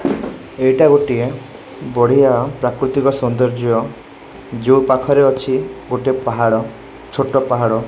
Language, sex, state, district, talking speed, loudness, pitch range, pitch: Odia, male, Odisha, Khordha, 90 wpm, -16 LUFS, 120-135 Hz, 130 Hz